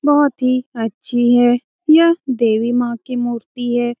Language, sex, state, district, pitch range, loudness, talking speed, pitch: Hindi, female, Bihar, Jamui, 240-260 Hz, -16 LUFS, 150 wpm, 245 Hz